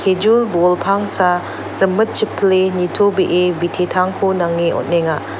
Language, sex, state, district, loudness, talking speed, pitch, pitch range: Garo, female, Meghalaya, North Garo Hills, -16 LUFS, 90 wpm, 185 Hz, 175-195 Hz